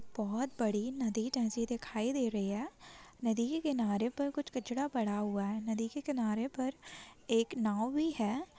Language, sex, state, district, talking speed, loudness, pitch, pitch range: Hindi, female, Bihar, Gopalganj, 175 wpm, -35 LUFS, 235 Hz, 220-265 Hz